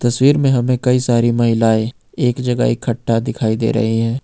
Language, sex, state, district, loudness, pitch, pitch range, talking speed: Hindi, male, Jharkhand, Ranchi, -16 LUFS, 120 Hz, 115-125 Hz, 185 wpm